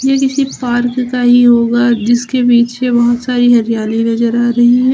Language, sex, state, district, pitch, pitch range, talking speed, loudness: Hindi, female, Uttar Pradesh, Lucknow, 240 Hz, 235-250 Hz, 180 wpm, -12 LUFS